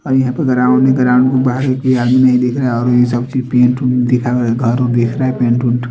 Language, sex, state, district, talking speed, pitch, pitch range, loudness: Hindi, male, Chandigarh, Chandigarh, 265 wpm, 125 Hz, 125-130 Hz, -13 LUFS